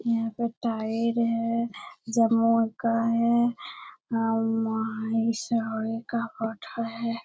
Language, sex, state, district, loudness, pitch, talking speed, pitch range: Hindi, male, Bihar, Jamui, -27 LUFS, 230 Hz, 65 wpm, 225-235 Hz